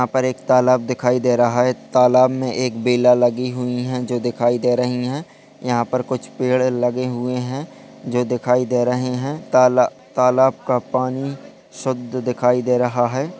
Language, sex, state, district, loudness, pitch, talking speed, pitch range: Hindi, male, Bihar, Begusarai, -19 LUFS, 125 Hz, 185 wpm, 125-130 Hz